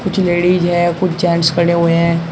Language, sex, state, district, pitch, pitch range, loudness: Hindi, male, Uttar Pradesh, Shamli, 175 Hz, 170-175 Hz, -14 LUFS